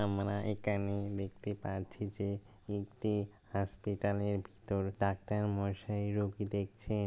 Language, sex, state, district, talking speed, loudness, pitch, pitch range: Bengali, male, West Bengal, Malda, 110 wpm, -37 LUFS, 100 Hz, 100-105 Hz